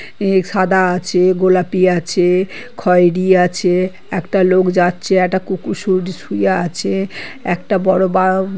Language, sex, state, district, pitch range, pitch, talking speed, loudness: Bengali, male, West Bengal, Kolkata, 180-190 Hz, 185 Hz, 125 wpm, -15 LUFS